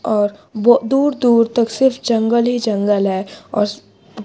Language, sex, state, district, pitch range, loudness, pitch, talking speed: Hindi, female, Delhi, New Delhi, 205-245 Hz, -16 LUFS, 230 Hz, 155 wpm